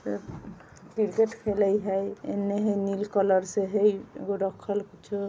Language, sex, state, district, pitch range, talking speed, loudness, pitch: Bajjika, female, Bihar, Vaishali, 195-205 Hz, 135 wpm, -27 LUFS, 200 Hz